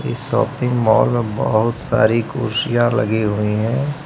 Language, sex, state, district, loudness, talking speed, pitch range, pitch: Hindi, male, Uttar Pradesh, Lucknow, -18 LUFS, 120 wpm, 110-120 Hz, 115 Hz